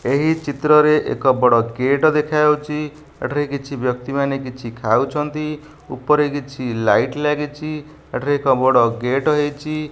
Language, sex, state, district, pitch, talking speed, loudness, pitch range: Odia, male, Odisha, Nuapada, 145 Hz, 120 wpm, -18 LUFS, 130-150 Hz